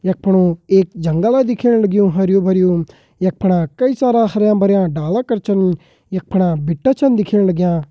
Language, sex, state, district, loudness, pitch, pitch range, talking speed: Garhwali, male, Uttarakhand, Uttarkashi, -15 LUFS, 190 Hz, 180-215 Hz, 165 wpm